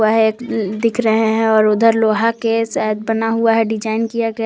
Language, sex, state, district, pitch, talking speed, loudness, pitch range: Hindi, female, Jharkhand, Palamu, 225 Hz, 190 wpm, -16 LUFS, 220-230 Hz